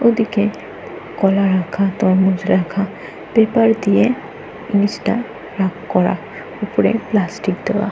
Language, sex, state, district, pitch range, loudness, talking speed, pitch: Bengali, female, Jharkhand, Jamtara, 190-225 Hz, -17 LUFS, 100 wpm, 205 Hz